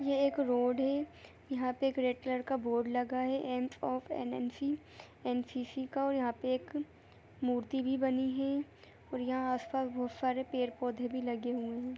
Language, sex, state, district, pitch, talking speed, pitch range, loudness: Hindi, female, Bihar, Begusarai, 255 Hz, 175 wpm, 245-270 Hz, -35 LUFS